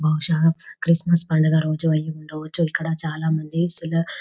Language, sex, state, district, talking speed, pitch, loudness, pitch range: Telugu, female, Telangana, Nalgonda, 130 wpm, 160 Hz, -21 LUFS, 155-165 Hz